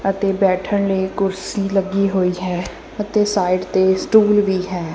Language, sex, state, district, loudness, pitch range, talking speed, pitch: Punjabi, female, Punjab, Kapurthala, -18 LUFS, 185-200 Hz, 160 wpm, 195 Hz